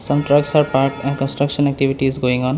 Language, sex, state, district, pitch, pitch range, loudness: English, male, Assam, Kamrup Metropolitan, 140 Hz, 135-145 Hz, -17 LUFS